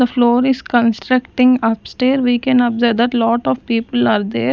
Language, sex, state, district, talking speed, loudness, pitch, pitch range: English, female, Punjab, Kapurthala, 185 wpm, -15 LUFS, 240 Hz, 230-250 Hz